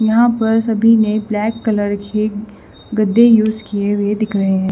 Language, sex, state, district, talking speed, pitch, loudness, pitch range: Hindi, female, Haryana, Rohtak, 175 wpm, 215 Hz, -15 LUFS, 205-225 Hz